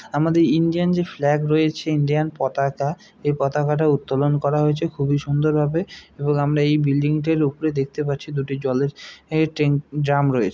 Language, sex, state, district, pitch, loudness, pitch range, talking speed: Bengali, male, West Bengal, Dakshin Dinajpur, 150 Hz, -21 LUFS, 140-155 Hz, 170 wpm